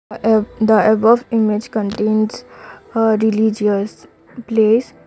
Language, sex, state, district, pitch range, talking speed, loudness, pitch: English, female, Assam, Kamrup Metropolitan, 215-225 Hz, 95 wpm, -16 LUFS, 220 Hz